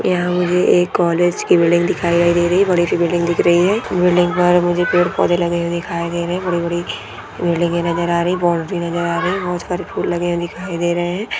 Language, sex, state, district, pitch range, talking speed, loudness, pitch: Hindi, female, Goa, North and South Goa, 170-180 Hz, 240 wpm, -17 LUFS, 175 Hz